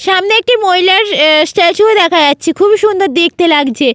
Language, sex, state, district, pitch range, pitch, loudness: Bengali, female, West Bengal, Malda, 315-410 Hz, 360 Hz, -9 LUFS